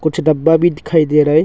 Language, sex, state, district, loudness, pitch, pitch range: Hindi, male, Arunachal Pradesh, Longding, -13 LUFS, 155 Hz, 150-165 Hz